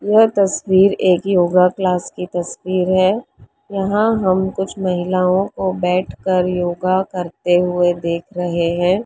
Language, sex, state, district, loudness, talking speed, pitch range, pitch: Hindi, female, Maharashtra, Mumbai Suburban, -17 LUFS, 130 wpm, 180-190 Hz, 185 Hz